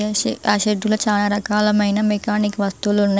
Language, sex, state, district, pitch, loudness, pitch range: Telugu, female, Telangana, Mahabubabad, 210 Hz, -19 LUFS, 205-210 Hz